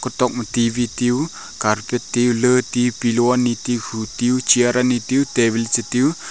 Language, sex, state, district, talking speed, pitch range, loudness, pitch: Wancho, male, Arunachal Pradesh, Longding, 150 wpm, 120-125 Hz, -18 LUFS, 120 Hz